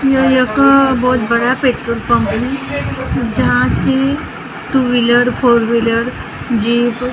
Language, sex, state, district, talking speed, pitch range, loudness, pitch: Hindi, female, Maharashtra, Gondia, 120 wpm, 235-265 Hz, -14 LUFS, 250 Hz